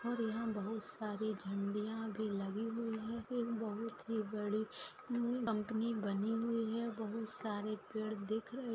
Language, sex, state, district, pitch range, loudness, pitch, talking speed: Hindi, female, Maharashtra, Pune, 215-230 Hz, -40 LUFS, 220 Hz, 170 wpm